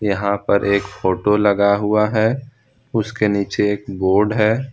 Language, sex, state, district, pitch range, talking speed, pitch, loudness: Hindi, male, Jharkhand, Deoghar, 100-110 Hz, 150 wpm, 105 Hz, -18 LUFS